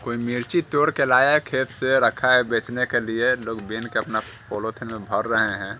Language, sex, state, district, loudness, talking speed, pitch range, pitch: Hindi, male, Bihar, Saran, -22 LUFS, 230 wpm, 115-130 Hz, 120 Hz